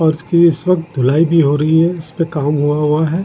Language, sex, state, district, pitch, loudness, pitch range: Hindi, male, Uttarakhand, Tehri Garhwal, 160 Hz, -14 LUFS, 150-170 Hz